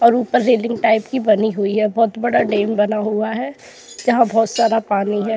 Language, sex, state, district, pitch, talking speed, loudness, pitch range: Hindi, female, Uttar Pradesh, Jyotiba Phule Nagar, 225 Hz, 210 wpm, -17 LUFS, 215-235 Hz